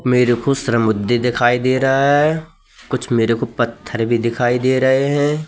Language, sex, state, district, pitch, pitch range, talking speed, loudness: Hindi, male, Madhya Pradesh, Katni, 125 Hz, 120-140 Hz, 175 wpm, -17 LUFS